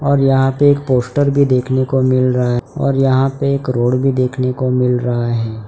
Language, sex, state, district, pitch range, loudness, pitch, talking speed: Hindi, male, Gujarat, Valsad, 125-135 Hz, -15 LUFS, 130 Hz, 220 wpm